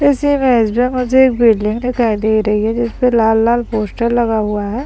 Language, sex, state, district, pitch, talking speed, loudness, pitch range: Hindi, male, Bihar, Madhepura, 235 Hz, 220 wpm, -14 LUFS, 220-250 Hz